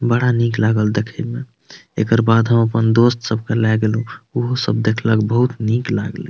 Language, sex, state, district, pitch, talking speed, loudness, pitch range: Maithili, male, Bihar, Madhepura, 115 Hz, 190 wpm, -17 LUFS, 110-120 Hz